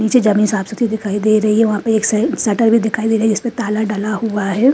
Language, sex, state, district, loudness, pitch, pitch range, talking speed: Hindi, female, Haryana, Rohtak, -16 LUFS, 220 Hz, 210-225 Hz, 290 wpm